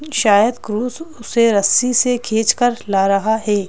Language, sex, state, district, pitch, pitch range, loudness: Hindi, female, Madhya Pradesh, Bhopal, 225 Hz, 205-245 Hz, -16 LUFS